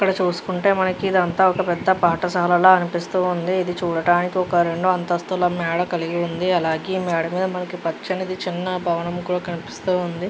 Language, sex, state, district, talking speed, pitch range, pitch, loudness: Telugu, female, Andhra Pradesh, Krishna, 170 wpm, 175-185 Hz, 180 Hz, -21 LUFS